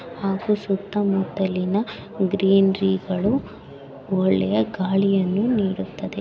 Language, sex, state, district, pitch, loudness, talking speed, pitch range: Kannada, female, Karnataka, Bellary, 195 Hz, -22 LUFS, 60 wpm, 185-200 Hz